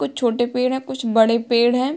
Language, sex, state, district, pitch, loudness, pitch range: Hindi, female, Bihar, Gopalganj, 240 Hz, -19 LUFS, 230-255 Hz